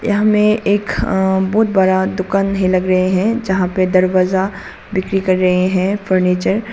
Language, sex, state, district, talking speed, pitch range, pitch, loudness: Hindi, female, Arunachal Pradesh, Papum Pare, 170 wpm, 185-200 Hz, 190 Hz, -15 LUFS